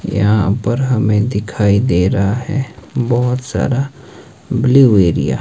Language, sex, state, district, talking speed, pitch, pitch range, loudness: Hindi, male, Himachal Pradesh, Shimla, 135 wpm, 120 Hz, 100-125 Hz, -15 LUFS